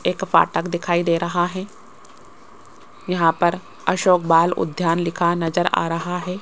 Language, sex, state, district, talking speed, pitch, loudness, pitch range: Hindi, female, Rajasthan, Jaipur, 150 wpm, 175 Hz, -20 LUFS, 170-180 Hz